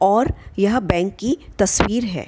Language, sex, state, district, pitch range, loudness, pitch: Hindi, female, Bihar, Kishanganj, 195-240 Hz, -19 LUFS, 205 Hz